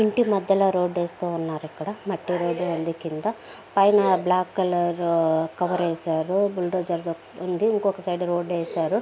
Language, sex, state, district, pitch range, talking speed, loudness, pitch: Telugu, female, Telangana, Karimnagar, 170-195 Hz, 140 wpm, -24 LUFS, 180 Hz